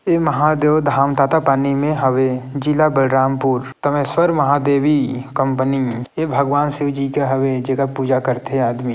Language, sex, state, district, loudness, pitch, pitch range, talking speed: Chhattisgarhi, male, Chhattisgarh, Sarguja, -17 LUFS, 140 Hz, 130-145 Hz, 140 wpm